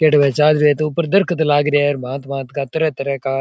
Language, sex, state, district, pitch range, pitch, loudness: Rajasthani, male, Rajasthan, Churu, 135-155 Hz, 145 Hz, -17 LUFS